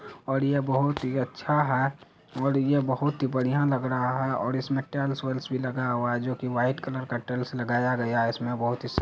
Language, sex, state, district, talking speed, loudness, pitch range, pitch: Hindi, male, Bihar, Araria, 225 wpm, -27 LUFS, 125-135 Hz, 130 Hz